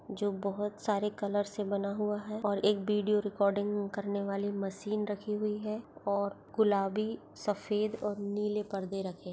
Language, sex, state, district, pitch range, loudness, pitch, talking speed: Hindi, female, Chhattisgarh, Bastar, 200-210 Hz, -33 LUFS, 205 Hz, 160 wpm